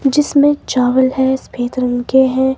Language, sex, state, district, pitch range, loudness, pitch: Hindi, male, Himachal Pradesh, Shimla, 250-270 Hz, -14 LUFS, 265 Hz